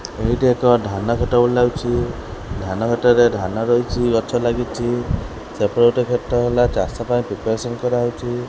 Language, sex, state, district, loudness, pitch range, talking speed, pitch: Odia, male, Odisha, Khordha, -19 LUFS, 110-120 Hz, 140 wpm, 120 Hz